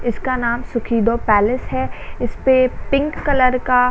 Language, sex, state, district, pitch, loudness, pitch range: Hindi, female, Bihar, Saran, 245 Hz, -18 LUFS, 230-255 Hz